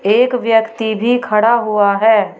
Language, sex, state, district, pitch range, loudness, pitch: Hindi, female, Uttar Pradesh, Shamli, 210-235 Hz, -13 LUFS, 225 Hz